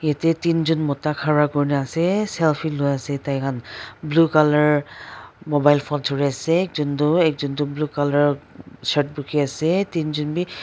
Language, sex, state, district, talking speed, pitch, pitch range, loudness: Nagamese, female, Nagaland, Dimapur, 170 wpm, 150 Hz, 145-160 Hz, -21 LUFS